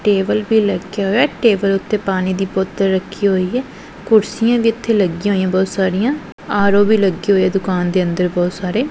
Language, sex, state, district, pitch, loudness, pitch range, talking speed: Punjabi, female, Punjab, Pathankot, 195 Hz, -16 LUFS, 190-215 Hz, 190 wpm